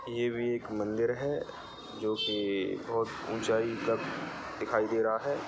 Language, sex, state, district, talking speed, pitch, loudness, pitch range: Hindi, male, Bihar, Saran, 155 wpm, 115 Hz, -32 LUFS, 110-120 Hz